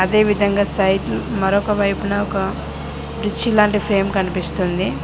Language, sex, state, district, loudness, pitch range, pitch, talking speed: Telugu, female, Telangana, Mahabubabad, -19 LUFS, 185-205 Hz, 195 Hz, 70 wpm